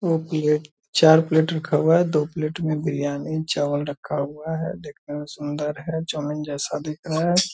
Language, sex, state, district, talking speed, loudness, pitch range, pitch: Hindi, male, Bihar, Purnia, 200 wpm, -23 LUFS, 150-160 Hz, 155 Hz